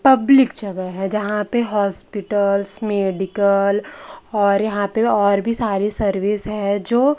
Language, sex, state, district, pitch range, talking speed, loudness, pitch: Hindi, female, Maharashtra, Gondia, 200-220 Hz, 135 wpm, -19 LUFS, 205 Hz